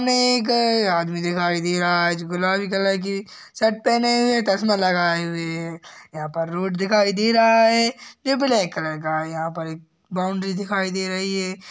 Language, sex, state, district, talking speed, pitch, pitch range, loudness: Hindi, female, Uttar Pradesh, Hamirpur, 185 wpm, 190 Hz, 175-225 Hz, -21 LUFS